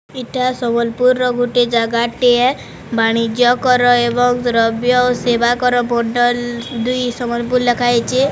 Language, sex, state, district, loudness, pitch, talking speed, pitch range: Odia, female, Odisha, Sambalpur, -15 LUFS, 245 Hz, 125 wpm, 235-250 Hz